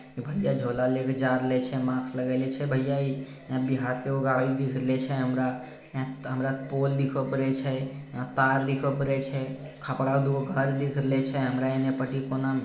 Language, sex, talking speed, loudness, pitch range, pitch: Bhojpuri, male, 195 wpm, -28 LUFS, 130-135 Hz, 135 Hz